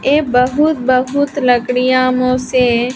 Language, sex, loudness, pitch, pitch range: Hindi, female, -14 LUFS, 255 Hz, 250-275 Hz